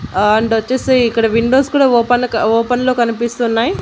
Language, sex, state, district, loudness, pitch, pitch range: Telugu, female, Andhra Pradesh, Annamaya, -14 LUFS, 235 Hz, 225-250 Hz